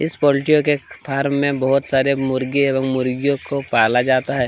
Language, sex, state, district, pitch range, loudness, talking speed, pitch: Hindi, male, Chhattisgarh, Kabirdham, 130-140 Hz, -18 LUFS, 185 wpm, 140 Hz